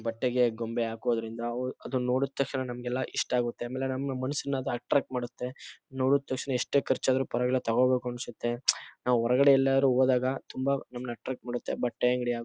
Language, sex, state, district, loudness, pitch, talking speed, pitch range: Kannada, male, Karnataka, Chamarajanagar, -29 LUFS, 125 Hz, 155 wpm, 120-130 Hz